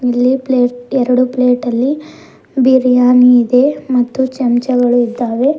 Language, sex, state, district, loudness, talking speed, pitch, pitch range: Kannada, female, Karnataka, Bidar, -12 LUFS, 105 wpm, 250 Hz, 245-260 Hz